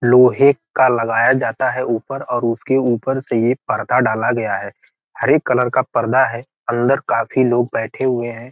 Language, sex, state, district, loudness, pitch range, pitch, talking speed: Hindi, male, Bihar, Gopalganj, -17 LUFS, 115-130 Hz, 125 Hz, 185 wpm